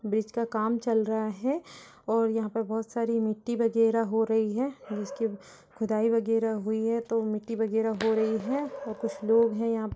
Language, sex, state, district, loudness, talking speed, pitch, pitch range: Hindi, female, Uttar Pradesh, Budaun, -28 LUFS, 210 wpm, 225 Hz, 220-230 Hz